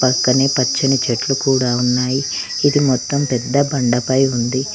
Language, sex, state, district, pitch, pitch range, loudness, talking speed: Telugu, female, Telangana, Mahabubabad, 130 Hz, 125-135 Hz, -16 LUFS, 125 wpm